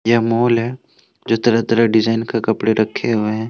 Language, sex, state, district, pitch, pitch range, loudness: Hindi, male, Jharkhand, Deoghar, 115 Hz, 110-115 Hz, -17 LUFS